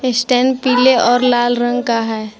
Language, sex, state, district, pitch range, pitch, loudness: Hindi, female, Jharkhand, Garhwa, 240-255 Hz, 245 Hz, -14 LUFS